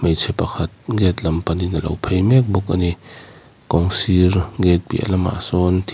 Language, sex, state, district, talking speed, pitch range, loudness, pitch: Mizo, male, Mizoram, Aizawl, 200 wpm, 85-95 Hz, -18 LUFS, 90 Hz